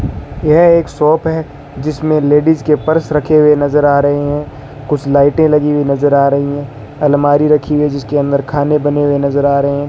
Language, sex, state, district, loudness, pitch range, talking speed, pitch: Hindi, male, Rajasthan, Bikaner, -12 LUFS, 140-150 Hz, 210 wpm, 145 Hz